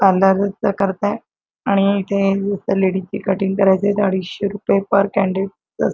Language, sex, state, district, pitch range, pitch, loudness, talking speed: Marathi, female, Maharashtra, Chandrapur, 190-200 Hz, 195 Hz, -18 LUFS, 110 wpm